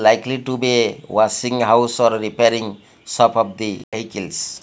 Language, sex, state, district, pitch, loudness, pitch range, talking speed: English, male, Odisha, Malkangiri, 115 Hz, -18 LUFS, 110-120 Hz, 155 wpm